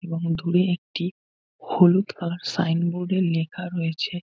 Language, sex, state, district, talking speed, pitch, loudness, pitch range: Bengali, male, West Bengal, North 24 Parganas, 125 wpm, 175 Hz, -24 LUFS, 170-180 Hz